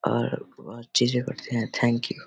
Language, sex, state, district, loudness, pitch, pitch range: Hindi, male, Bihar, Vaishali, -26 LUFS, 120 Hz, 120-125 Hz